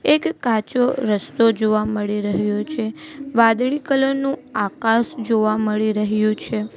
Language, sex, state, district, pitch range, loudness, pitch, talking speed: Gujarati, female, Gujarat, Valsad, 215-260 Hz, -20 LUFS, 225 Hz, 135 wpm